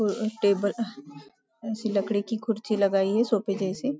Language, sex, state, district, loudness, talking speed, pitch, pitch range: Hindi, female, Maharashtra, Nagpur, -26 LUFS, 180 wpm, 210 Hz, 200-225 Hz